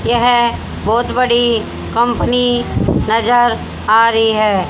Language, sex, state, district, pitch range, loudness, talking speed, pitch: Hindi, female, Haryana, Jhajjar, 225-240 Hz, -14 LUFS, 100 wpm, 235 Hz